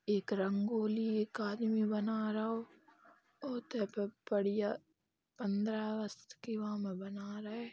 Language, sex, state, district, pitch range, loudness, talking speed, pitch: Bundeli, female, Uttar Pradesh, Hamirpur, 205-220 Hz, -37 LUFS, 115 wpm, 215 Hz